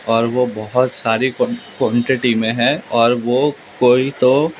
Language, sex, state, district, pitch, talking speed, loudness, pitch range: Hindi, male, Maharashtra, Mumbai Suburban, 125 Hz, 155 wpm, -16 LUFS, 115-130 Hz